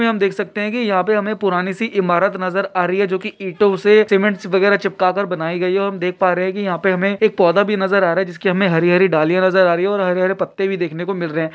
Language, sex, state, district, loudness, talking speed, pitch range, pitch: Hindi, male, Jharkhand, Jamtara, -17 LUFS, 315 wpm, 180-200 Hz, 190 Hz